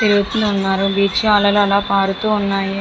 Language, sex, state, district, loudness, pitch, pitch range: Telugu, female, Andhra Pradesh, Visakhapatnam, -16 LUFS, 200 Hz, 195-210 Hz